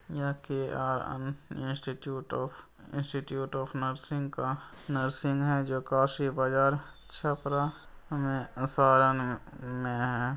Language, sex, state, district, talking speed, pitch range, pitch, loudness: Hindi, male, Bihar, Saran, 110 wpm, 130-140 Hz, 135 Hz, -31 LUFS